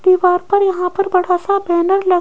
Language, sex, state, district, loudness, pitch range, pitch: Hindi, female, Rajasthan, Jaipur, -15 LUFS, 360-390 Hz, 365 Hz